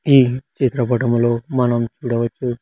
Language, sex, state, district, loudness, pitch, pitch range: Telugu, male, Andhra Pradesh, Sri Satya Sai, -18 LUFS, 120 Hz, 120-130 Hz